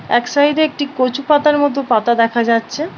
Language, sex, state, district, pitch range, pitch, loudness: Bengali, female, West Bengal, Paschim Medinipur, 235-295 Hz, 275 Hz, -15 LUFS